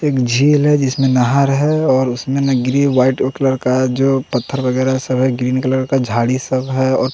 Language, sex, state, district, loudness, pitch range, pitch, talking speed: Hindi, male, Bihar, West Champaran, -15 LUFS, 130-135 Hz, 130 Hz, 200 wpm